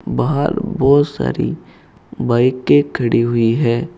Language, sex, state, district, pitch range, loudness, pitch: Hindi, male, Uttar Pradesh, Saharanpur, 115-145 Hz, -16 LUFS, 120 Hz